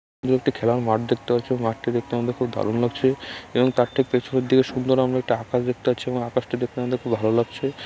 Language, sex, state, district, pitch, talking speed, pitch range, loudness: Bengali, male, West Bengal, Jalpaiguri, 125 Hz, 230 wpm, 120-130 Hz, -23 LUFS